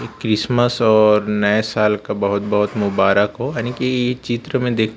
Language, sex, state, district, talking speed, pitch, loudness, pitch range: Hindi, male, Chhattisgarh, Raipur, 170 wpm, 110 Hz, -17 LUFS, 105-120 Hz